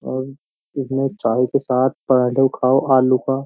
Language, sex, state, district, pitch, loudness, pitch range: Hindi, male, Uttar Pradesh, Jyotiba Phule Nagar, 130 Hz, -18 LUFS, 130-135 Hz